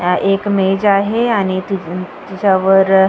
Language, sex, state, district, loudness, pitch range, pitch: Marathi, female, Maharashtra, Sindhudurg, -15 LUFS, 190-200 Hz, 195 Hz